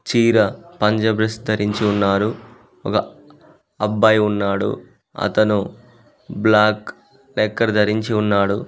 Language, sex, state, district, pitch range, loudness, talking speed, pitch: Telugu, male, Telangana, Mahabubabad, 105-110 Hz, -18 LUFS, 85 wpm, 105 Hz